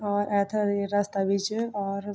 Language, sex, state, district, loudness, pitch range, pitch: Garhwali, female, Uttarakhand, Tehri Garhwal, -27 LUFS, 200-205 Hz, 205 Hz